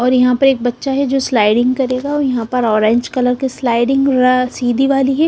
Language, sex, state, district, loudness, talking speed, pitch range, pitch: Hindi, female, Punjab, Kapurthala, -14 LUFS, 225 wpm, 245-270 Hz, 255 Hz